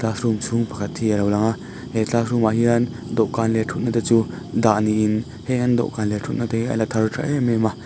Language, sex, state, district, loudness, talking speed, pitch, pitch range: Mizo, male, Mizoram, Aizawl, -21 LUFS, 235 wpm, 115 Hz, 110-120 Hz